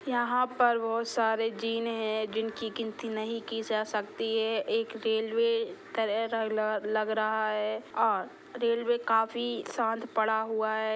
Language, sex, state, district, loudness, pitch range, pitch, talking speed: Hindi, female, Bihar, Gopalganj, -30 LUFS, 220-235 Hz, 225 Hz, 135 wpm